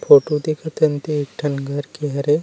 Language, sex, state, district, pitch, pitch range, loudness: Chhattisgarhi, male, Chhattisgarh, Rajnandgaon, 150 Hz, 145-155 Hz, -20 LUFS